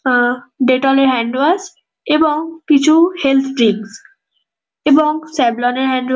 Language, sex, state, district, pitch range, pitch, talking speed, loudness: Bengali, female, West Bengal, North 24 Parganas, 255-315 Hz, 270 Hz, 115 wpm, -14 LUFS